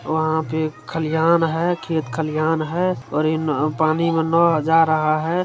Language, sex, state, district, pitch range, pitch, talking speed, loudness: Hindi, male, Bihar, Saran, 155-165 Hz, 160 Hz, 165 wpm, -20 LUFS